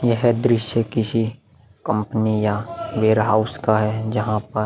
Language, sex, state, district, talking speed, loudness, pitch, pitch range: Hindi, male, Bihar, Vaishali, 140 wpm, -20 LUFS, 110 Hz, 110-115 Hz